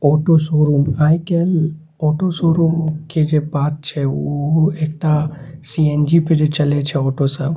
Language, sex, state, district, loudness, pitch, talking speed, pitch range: Maithili, male, Bihar, Saharsa, -17 LUFS, 155 Hz, 160 wpm, 145-160 Hz